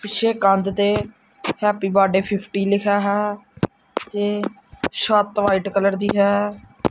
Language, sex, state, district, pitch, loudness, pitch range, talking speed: Punjabi, male, Punjab, Kapurthala, 205 Hz, -20 LUFS, 195-205 Hz, 120 wpm